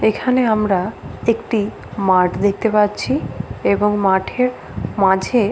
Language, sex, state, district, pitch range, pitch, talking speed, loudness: Bengali, female, West Bengal, Paschim Medinipur, 190-225 Hz, 210 Hz, 100 wpm, -18 LUFS